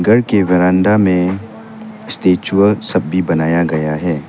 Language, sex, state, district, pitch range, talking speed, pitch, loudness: Hindi, male, Arunachal Pradesh, Lower Dibang Valley, 85-105 Hz, 140 wpm, 95 Hz, -14 LUFS